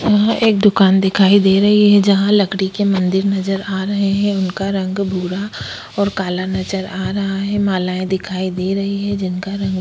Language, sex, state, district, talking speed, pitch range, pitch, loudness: Hindi, female, Goa, North and South Goa, 195 wpm, 190-200 Hz, 195 Hz, -16 LUFS